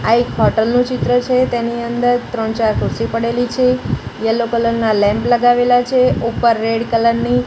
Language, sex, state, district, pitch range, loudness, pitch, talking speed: Gujarati, female, Gujarat, Gandhinagar, 230-245 Hz, -15 LUFS, 235 Hz, 185 wpm